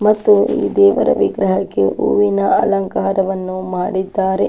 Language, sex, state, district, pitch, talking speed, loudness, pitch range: Kannada, female, Karnataka, Dakshina Kannada, 190 Hz, 105 wpm, -15 LUFS, 180-200 Hz